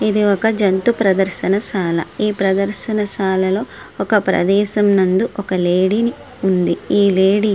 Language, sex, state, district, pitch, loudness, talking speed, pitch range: Telugu, female, Andhra Pradesh, Srikakulam, 195 Hz, -16 LUFS, 105 wpm, 190-210 Hz